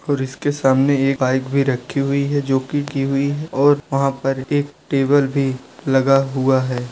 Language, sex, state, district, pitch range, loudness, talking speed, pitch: Hindi, male, Uttar Pradesh, Budaun, 135-140 Hz, -18 LUFS, 190 wpm, 135 Hz